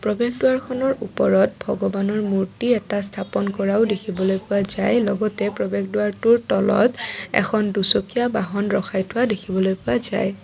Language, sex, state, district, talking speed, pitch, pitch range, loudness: Assamese, female, Assam, Kamrup Metropolitan, 120 wpm, 205 Hz, 195-225 Hz, -21 LUFS